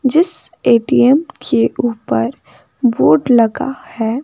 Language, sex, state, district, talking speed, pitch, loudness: Hindi, female, Himachal Pradesh, Shimla, 100 wpm, 240 Hz, -15 LUFS